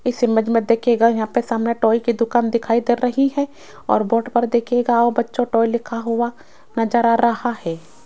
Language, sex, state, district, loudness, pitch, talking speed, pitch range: Hindi, female, Rajasthan, Jaipur, -19 LUFS, 235 Hz, 200 wpm, 230-240 Hz